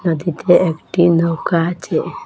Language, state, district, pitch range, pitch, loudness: Bengali, Assam, Hailakandi, 165-175 Hz, 170 Hz, -16 LUFS